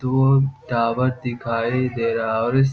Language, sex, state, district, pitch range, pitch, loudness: Hindi, male, Bihar, Jamui, 115-130 Hz, 125 Hz, -21 LUFS